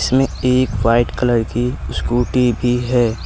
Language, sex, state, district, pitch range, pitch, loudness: Hindi, male, Uttar Pradesh, Lucknow, 115-125 Hz, 120 Hz, -17 LUFS